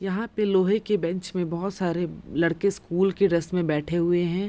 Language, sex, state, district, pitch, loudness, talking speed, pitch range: Hindi, female, Bihar, Madhepura, 180 Hz, -25 LUFS, 225 wpm, 170-200 Hz